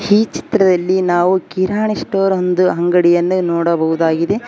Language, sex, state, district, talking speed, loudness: Kannada, female, Karnataka, Koppal, 105 wpm, -15 LUFS